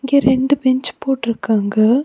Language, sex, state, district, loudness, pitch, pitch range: Tamil, female, Tamil Nadu, Nilgiris, -17 LUFS, 260 Hz, 225-270 Hz